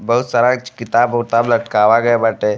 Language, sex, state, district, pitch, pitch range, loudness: Bhojpuri, male, Uttar Pradesh, Deoria, 120 Hz, 115-120 Hz, -15 LUFS